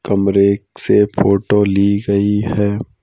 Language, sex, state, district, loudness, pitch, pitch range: Hindi, male, Madhya Pradesh, Bhopal, -15 LUFS, 100 Hz, 100-105 Hz